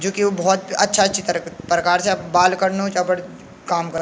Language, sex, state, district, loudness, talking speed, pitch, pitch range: Garhwali, male, Uttarakhand, Tehri Garhwal, -19 LUFS, 225 wpm, 180 Hz, 175-195 Hz